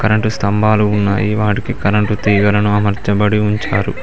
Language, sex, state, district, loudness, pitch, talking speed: Telugu, male, Telangana, Mahabubabad, -15 LUFS, 105 Hz, 120 wpm